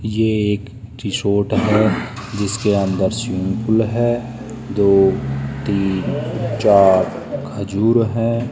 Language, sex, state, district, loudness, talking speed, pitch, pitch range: Hindi, male, Rajasthan, Jaipur, -18 LUFS, 100 wpm, 105 Hz, 100-115 Hz